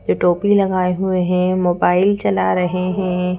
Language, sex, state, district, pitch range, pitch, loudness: Hindi, female, Madhya Pradesh, Bhopal, 180-185 Hz, 180 Hz, -17 LUFS